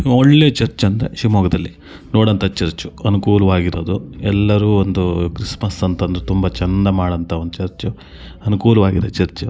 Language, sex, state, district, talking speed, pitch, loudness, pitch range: Kannada, male, Karnataka, Shimoga, 115 wpm, 95 Hz, -16 LUFS, 90-105 Hz